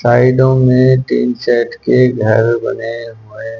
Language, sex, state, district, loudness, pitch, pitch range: Hindi, male, Haryana, Charkhi Dadri, -12 LUFS, 120 Hz, 115-125 Hz